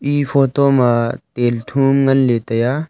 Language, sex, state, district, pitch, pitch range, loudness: Wancho, male, Arunachal Pradesh, Longding, 135 Hz, 120-140 Hz, -16 LUFS